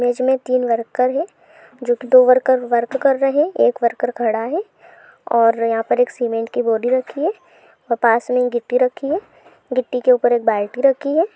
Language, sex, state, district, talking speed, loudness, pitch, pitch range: Hindi, female, Jharkhand, Sahebganj, 185 wpm, -18 LUFS, 250 Hz, 235-270 Hz